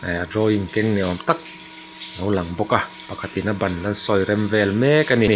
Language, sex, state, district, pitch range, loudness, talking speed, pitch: Mizo, male, Mizoram, Aizawl, 95-125 Hz, -21 LUFS, 215 wpm, 105 Hz